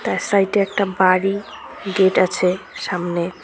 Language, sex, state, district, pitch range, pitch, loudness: Bengali, female, West Bengal, Cooch Behar, 180-200 Hz, 190 Hz, -19 LUFS